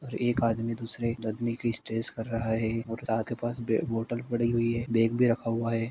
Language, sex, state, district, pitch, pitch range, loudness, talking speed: Hindi, male, Jharkhand, Jamtara, 115 Hz, 115-120 Hz, -29 LUFS, 225 wpm